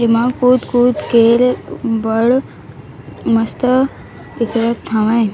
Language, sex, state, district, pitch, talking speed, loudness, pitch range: Chhattisgarhi, female, Chhattisgarh, Raigarh, 235 Hz, 80 wpm, -15 LUFS, 230-250 Hz